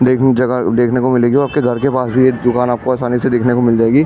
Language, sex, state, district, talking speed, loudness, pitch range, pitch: Hindi, male, Delhi, New Delhi, 310 wpm, -14 LUFS, 120-130 Hz, 125 Hz